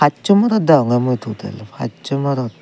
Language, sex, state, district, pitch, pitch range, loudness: Chakma, male, Tripura, Dhalai, 140 Hz, 125-155 Hz, -17 LUFS